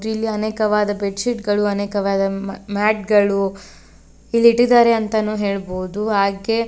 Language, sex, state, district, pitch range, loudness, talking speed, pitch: Kannada, female, Karnataka, Koppal, 200-220 Hz, -18 LUFS, 115 wpm, 210 Hz